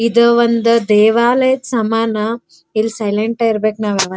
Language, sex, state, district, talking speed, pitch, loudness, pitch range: Kannada, female, Karnataka, Dharwad, 145 wpm, 225 Hz, -14 LUFS, 215-235 Hz